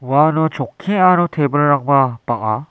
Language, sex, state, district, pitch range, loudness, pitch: Garo, male, Meghalaya, West Garo Hills, 135-160 Hz, -16 LUFS, 145 Hz